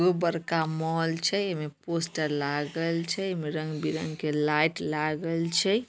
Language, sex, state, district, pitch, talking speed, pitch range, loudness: Magahi, female, Bihar, Samastipur, 165 Hz, 140 wpm, 155-170 Hz, -28 LUFS